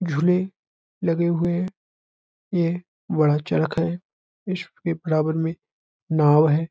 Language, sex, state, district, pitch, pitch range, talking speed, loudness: Hindi, male, Uttar Pradesh, Budaun, 170 Hz, 155-180 Hz, 115 wpm, -23 LUFS